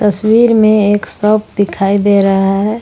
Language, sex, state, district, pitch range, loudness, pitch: Hindi, female, Jharkhand, Ranchi, 195-215 Hz, -11 LUFS, 205 Hz